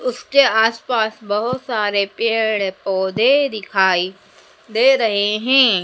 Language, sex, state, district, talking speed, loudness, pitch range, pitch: Hindi, female, Madhya Pradesh, Dhar, 105 wpm, -17 LUFS, 200-245 Hz, 220 Hz